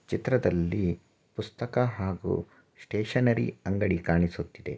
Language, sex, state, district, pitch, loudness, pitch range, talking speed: Kannada, male, Karnataka, Shimoga, 100 Hz, -29 LUFS, 85-115 Hz, 75 wpm